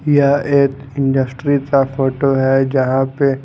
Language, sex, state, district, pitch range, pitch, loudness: Hindi, male, Haryana, Jhajjar, 135-140 Hz, 135 Hz, -15 LUFS